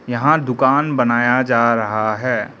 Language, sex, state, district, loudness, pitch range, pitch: Hindi, male, Arunachal Pradesh, Lower Dibang Valley, -16 LUFS, 115-130 Hz, 125 Hz